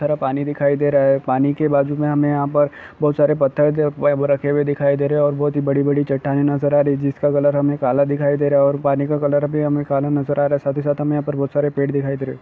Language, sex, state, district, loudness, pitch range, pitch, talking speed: Hindi, male, Jharkhand, Jamtara, -18 LUFS, 140-145 Hz, 145 Hz, 305 wpm